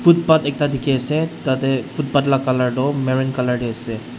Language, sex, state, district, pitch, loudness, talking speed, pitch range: Nagamese, male, Nagaland, Dimapur, 135 Hz, -19 LUFS, 160 wpm, 125-145 Hz